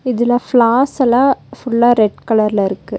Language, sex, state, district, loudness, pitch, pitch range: Tamil, female, Tamil Nadu, Nilgiris, -14 LUFS, 240 Hz, 215-250 Hz